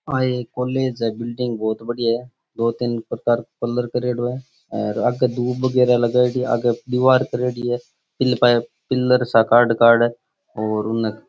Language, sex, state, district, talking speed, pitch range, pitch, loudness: Rajasthani, male, Rajasthan, Churu, 175 wpm, 115-125 Hz, 120 Hz, -20 LUFS